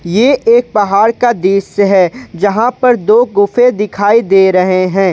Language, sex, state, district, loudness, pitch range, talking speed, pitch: Hindi, male, Jharkhand, Ranchi, -10 LUFS, 195-240 Hz, 165 wpm, 205 Hz